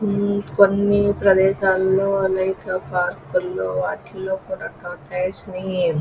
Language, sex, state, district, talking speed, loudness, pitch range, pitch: Telugu, female, Andhra Pradesh, Krishna, 100 wpm, -20 LUFS, 180-200 Hz, 190 Hz